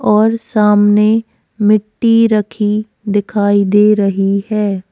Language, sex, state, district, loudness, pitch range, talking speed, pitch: Hindi, female, Goa, North and South Goa, -13 LUFS, 205-215 Hz, 100 wpm, 210 Hz